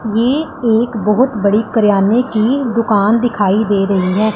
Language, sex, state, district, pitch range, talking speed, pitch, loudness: Hindi, female, Punjab, Pathankot, 205-235 Hz, 150 wpm, 220 Hz, -14 LUFS